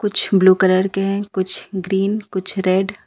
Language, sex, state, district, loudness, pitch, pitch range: Hindi, female, Jharkhand, Ranchi, -18 LUFS, 190 Hz, 190-200 Hz